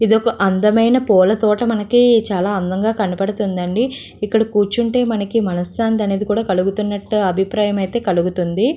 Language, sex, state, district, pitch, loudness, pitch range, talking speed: Telugu, female, Andhra Pradesh, Visakhapatnam, 210 Hz, -17 LUFS, 195-225 Hz, 125 wpm